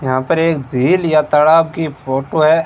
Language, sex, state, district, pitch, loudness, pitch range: Hindi, male, Rajasthan, Bikaner, 155 Hz, -14 LUFS, 135-165 Hz